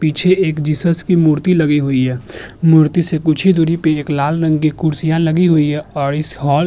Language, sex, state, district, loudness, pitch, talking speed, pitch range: Hindi, male, Uttar Pradesh, Jyotiba Phule Nagar, -14 LUFS, 155 Hz, 235 wpm, 150-165 Hz